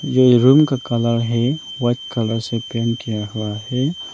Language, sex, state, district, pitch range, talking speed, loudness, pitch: Hindi, male, Arunachal Pradesh, Longding, 115-130 Hz, 175 wpm, -18 LUFS, 120 Hz